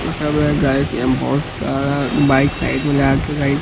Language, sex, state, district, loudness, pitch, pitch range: Hindi, male, Bihar, Katihar, -17 LUFS, 140 Hz, 135-145 Hz